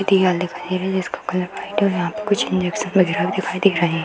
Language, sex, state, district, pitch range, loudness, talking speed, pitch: Hindi, female, Uttar Pradesh, Hamirpur, 175-195 Hz, -20 LUFS, 280 wpm, 185 Hz